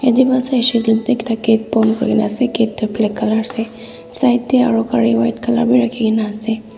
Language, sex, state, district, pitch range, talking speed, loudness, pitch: Nagamese, female, Nagaland, Dimapur, 215-240 Hz, 170 wpm, -16 LUFS, 225 Hz